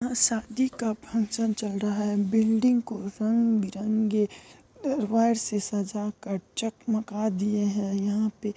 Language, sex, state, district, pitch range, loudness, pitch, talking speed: Hindi, female, Bihar, Kishanganj, 205-230 Hz, -27 LUFS, 215 Hz, 120 wpm